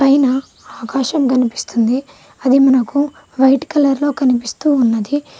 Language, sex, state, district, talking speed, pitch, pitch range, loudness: Telugu, female, Telangana, Mahabubabad, 110 wpm, 270 Hz, 250-280 Hz, -15 LUFS